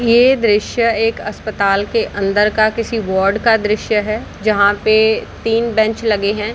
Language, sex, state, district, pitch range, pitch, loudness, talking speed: Hindi, female, Bihar, Darbhanga, 210-225 Hz, 215 Hz, -15 LUFS, 165 wpm